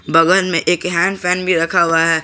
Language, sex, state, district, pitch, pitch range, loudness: Hindi, male, Jharkhand, Garhwa, 170 Hz, 165-180 Hz, -15 LUFS